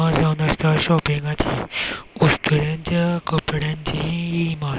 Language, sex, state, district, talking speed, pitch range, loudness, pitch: Konkani, male, Goa, North and South Goa, 140 wpm, 155-165 Hz, -21 LUFS, 155 Hz